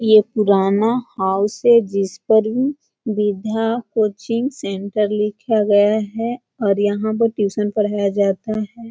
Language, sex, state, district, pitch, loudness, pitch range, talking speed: Hindi, female, Bihar, Jahanabad, 215 Hz, -18 LUFS, 205-225 Hz, 120 wpm